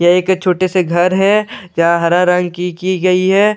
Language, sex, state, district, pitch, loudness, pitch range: Hindi, male, Bihar, Katihar, 180 Hz, -13 LUFS, 175-185 Hz